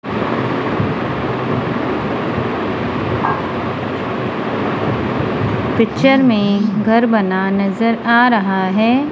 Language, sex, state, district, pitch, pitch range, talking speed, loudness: Hindi, female, Punjab, Kapurthala, 220 Hz, 200-235 Hz, 55 wpm, -16 LUFS